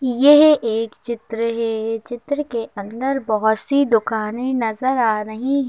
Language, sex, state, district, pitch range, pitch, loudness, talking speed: Hindi, female, Madhya Pradesh, Bhopal, 220-265 Hz, 230 Hz, -19 LUFS, 145 wpm